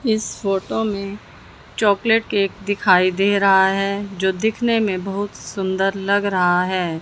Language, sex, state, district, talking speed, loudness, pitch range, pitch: Hindi, female, Haryana, Jhajjar, 145 wpm, -19 LUFS, 190-205 Hz, 195 Hz